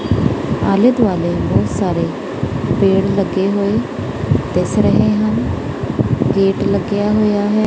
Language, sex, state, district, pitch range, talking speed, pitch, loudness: Punjabi, female, Punjab, Kapurthala, 195-215 Hz, 110 wpm, 205 Hz, -16 LUFS